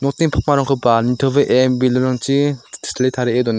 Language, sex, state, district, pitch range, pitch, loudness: Garo, male, Meghalaya, South Garo Hills, 125-140 Hz, 130 Hz, -16 LUFS